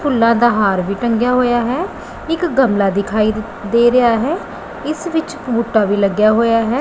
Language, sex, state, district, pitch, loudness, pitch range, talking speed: Punjabi, female, Punjab, Pathankot, 235 Hz, -15 LUFS, 215-255 Hz, 175 wpm